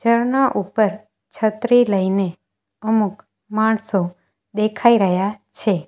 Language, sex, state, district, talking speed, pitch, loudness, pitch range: Gujarati, female, Gujarat, Valsad, 90 wpm, 215 Hz, -19 LUFS, 195-220 Hz